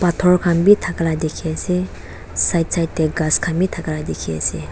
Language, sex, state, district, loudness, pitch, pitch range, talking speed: Nagamese, female, Nagaland, Dimapur, -18 LUFS, 165 Hz, 155-175 Hz, 175 wpm